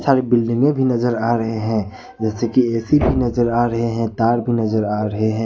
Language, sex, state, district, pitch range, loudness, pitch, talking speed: Hindi, male, Jharkhand, Ranchi, 110-120 Hz, -18 LUFS, 115 Hz, 230 wpm